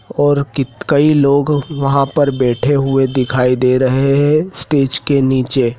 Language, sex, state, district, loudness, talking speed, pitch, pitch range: Hindi, male, Madhya Pradesh, Dhar, -14 LUFS, 155 wpm, 140 Hz, 130-145 Hz